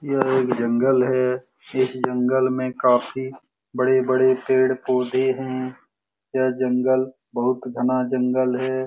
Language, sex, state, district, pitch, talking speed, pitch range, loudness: Hindi, male, Bihar, Lakhisarai, 130 Hz, 120 wpm, 125-130 Hz, -21 LUFS